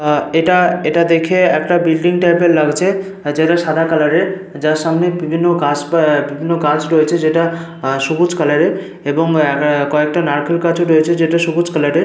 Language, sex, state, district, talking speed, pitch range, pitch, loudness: Bengali, male, Jharkhand, Sahebganj, 180 wpm, 150-170 Hz, 165 Hz, -14 LUFS